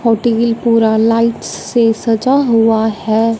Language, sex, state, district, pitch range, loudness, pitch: Hindi, female, Punjab, Fazilka, 225-235 Hz, -13 LUFS, 230 Hz